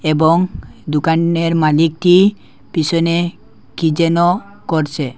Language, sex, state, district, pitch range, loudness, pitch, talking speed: Bengali, male, Assam, Hailakandi, 155-175 Hz, -15 LUFS, 165 Hz, 80 wpm